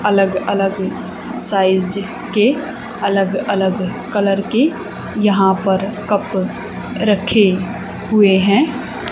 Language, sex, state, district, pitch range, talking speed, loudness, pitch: Hindi, female, Haryana, Charkhi Dadri, 190-210 Hz, 90 wpm, -16 LUFS, 200 Hz